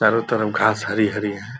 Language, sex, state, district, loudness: Hindi, male, Bihar, Purnia, -21 LUFS